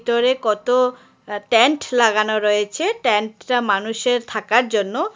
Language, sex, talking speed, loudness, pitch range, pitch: Bengali, female, 115 wpm, -18 LUFS, 215-250 Hz, 235 Hz